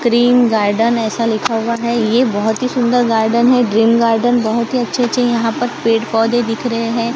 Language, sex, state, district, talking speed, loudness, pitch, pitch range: Hindi, female, Maharashtra, Gondia, 210 wpm, -14 LUFS, 235 Hz, 225-245 Hz